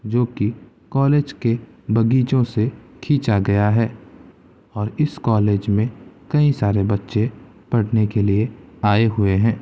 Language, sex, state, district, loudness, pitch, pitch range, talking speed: Hindi, male, Uttar Pradesh, Gorakhpur, -20 LUFS, 110 Hz, 105-125 Hz, 135 wpm